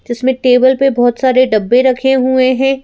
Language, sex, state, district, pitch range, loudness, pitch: Hindi, female, Madhya Pradesh, Bhopal, 250-265 Hz, -11 LUFS, 260 Hz